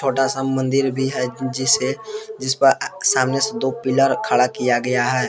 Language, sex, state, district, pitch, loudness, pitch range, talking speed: Hindi, male, Jharkhand, Palamu, 135 Hz, -19 LUFS, 130-135 Hz, 170 wpm